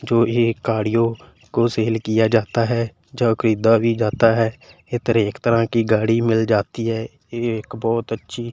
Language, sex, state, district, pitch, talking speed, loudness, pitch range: Hindi, male, Punjab, Fazilka, 115 Hz, 170 wpm, -19 LUFS, 110-115 Hz